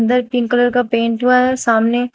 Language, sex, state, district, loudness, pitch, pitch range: Hindi, female, Uttar Pradesh, Shamli, -15 LUFS, 245 Hz, 235-250 Hz